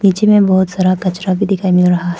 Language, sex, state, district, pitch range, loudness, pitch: Hindi, female, Arunachal Pradesh, Papum Pare, 180-195 Hz, -13 LUFS, 185 Hz